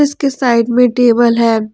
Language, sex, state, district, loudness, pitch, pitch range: Hindi, female, Jharkhand, Ranchi, -12 LUFS, 240 Hz, 235-250 Hz